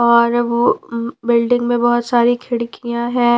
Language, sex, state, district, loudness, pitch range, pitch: Hindi, female, Punjab, Pathankot, -16 LUFS, 235-240 Hz, 240 Hz